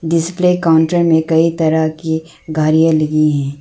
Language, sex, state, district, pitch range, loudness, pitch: Hindi, female, Arunachal Pradesh, Lower Dibang Valley, 155-165 Hz, -14 LUFS, 160 Hz